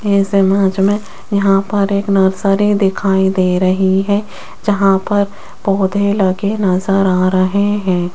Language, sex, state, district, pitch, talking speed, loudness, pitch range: Hindi, female, Rajasthan, Jaipur, 195 Hz, 145 wpm, -14 LUFS, 190-200 Hz